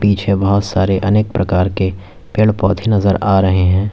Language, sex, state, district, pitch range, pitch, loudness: Hindi, male, Uttar Pradesh, Lalitpur, 95-100 Hz, 95 Hz, -15 LUFS